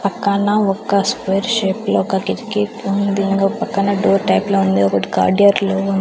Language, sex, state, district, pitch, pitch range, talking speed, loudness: Telugu, female, Andhra Pradesh, Sri Satya Sai, 200 Hz, 195-200 Hz, 180 wpm, -16 LUFS